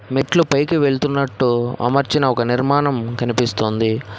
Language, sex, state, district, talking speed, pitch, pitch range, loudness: Telugu, male, Telangana, Hyderabad, 100 wpm, 130 Hz, 120-140 Hz, -18 LUFS